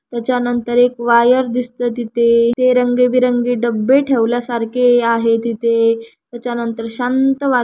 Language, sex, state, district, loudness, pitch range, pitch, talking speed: Marathi, female, Maharashtra, Chandrapur, -15 LUFS, 235-250 Hz, 240 Hz, 135 wpm